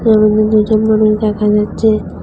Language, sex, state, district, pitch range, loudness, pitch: Bengali, female, Tripura, West Tripura, 210-215 Hz, -12 LUFS, 215 Hz